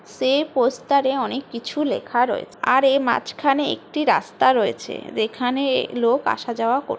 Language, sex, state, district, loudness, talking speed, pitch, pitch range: Bengali, female, West Bengal, Jhargram, -21 LUFS, 145 wpm, 260 Hz, 240-275 Hz